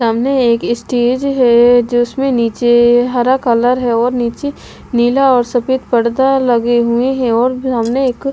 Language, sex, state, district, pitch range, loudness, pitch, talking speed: Hindi, female, Bihar, West Champaran, 235-260 Hz, -13 LUFS, 245 Hz, 150 wpm